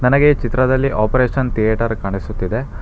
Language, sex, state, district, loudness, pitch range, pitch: Kannada, male, Karnataka, Bangalore, -17 LUFS, 110-130 Hz, 120 Hz